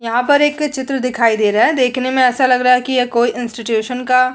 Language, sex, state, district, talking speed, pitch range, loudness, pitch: Hindi, female, Bihar, Vaishali, 275 wpm, 235-260 Hz, -15 LUFS, 250 Hz